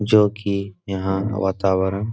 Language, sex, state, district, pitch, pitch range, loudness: Hindi, male, Bihar, Supaul, 100 Hz, 95-105 Hz, -21 LUFS